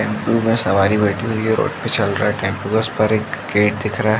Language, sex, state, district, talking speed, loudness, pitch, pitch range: Hindi, male, Uttar Pradesh, Jalaun, 285 wpm, -18 LUFS, 110 Hz, 105-110 Hz